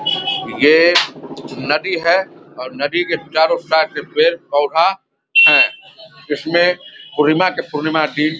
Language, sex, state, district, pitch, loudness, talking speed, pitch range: Hindi, male, Bihar, Vaishali, 160 Hz, -15 LUFS, 130 wpm, 150-175 Hz